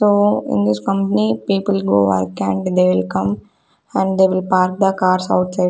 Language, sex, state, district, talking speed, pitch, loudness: English, female, Chandigarh, Chandigarh, 190 wpm, 185 Hz, -17 LUFS